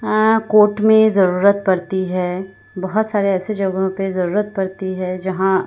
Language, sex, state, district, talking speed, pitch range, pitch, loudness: Hindi, female, Bihar, Katihar, 170 wpm, 185-210 Hz, 190 Hz, -17 LUFS